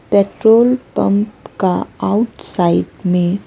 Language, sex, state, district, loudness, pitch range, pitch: Hindi, female, Chhattisgarh, Raipur, -15 LUFS, 180-220 Hz, 200 Hz